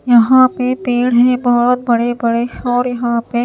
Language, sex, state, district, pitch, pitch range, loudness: Hindi, female, Himachal Pradesh, Shimla, 245 Hz, 240-250 Hz, -14 LUFS